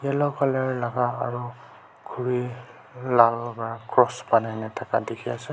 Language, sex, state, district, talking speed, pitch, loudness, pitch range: Nagamese, male, Nagaland, Kohima, 130 wpm, 120 Hz, -25 LUFS, 115-125 Hz